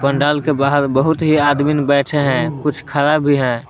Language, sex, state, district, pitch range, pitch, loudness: Hindi, male, Jharkhand, Palamu, 140-150 Hz, 145 Hz, -15 LUFS